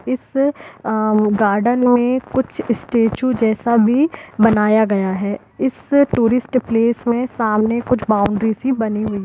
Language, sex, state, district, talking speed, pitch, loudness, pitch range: Hindi, female, Jharkhand, Sahebganj, 135 wpm, 230 Hz, -17 LUFS, 215-250 Hz